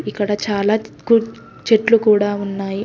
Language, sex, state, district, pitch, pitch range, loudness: Telugu, female, Telangana, Hyderabad, 210 Hz, 200-220 Hz, -17 LUFS